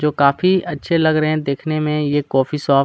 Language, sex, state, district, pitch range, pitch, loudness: Hindi, male, Chhattisgarh, Kabirdham, 140-155 Hz, 150 Hz, -17 LUFS